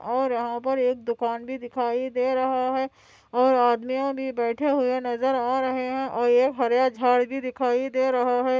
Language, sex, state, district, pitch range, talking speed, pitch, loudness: Hindi, female, Andhra Pradesh, Anantapur, 245-260 Hz, 195 wpm, 255 Hz, -24 LUFS